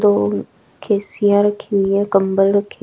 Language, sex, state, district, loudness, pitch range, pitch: Hindi, female, Chhattisgarh, Raipur, -17 LUFS, 195-205 Hz, 200 Hz